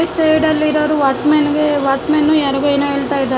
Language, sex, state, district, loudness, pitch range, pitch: Kannada, female, Karnataka, Bangalore, -14 LUFS, 280-305 Hz, 300 Hz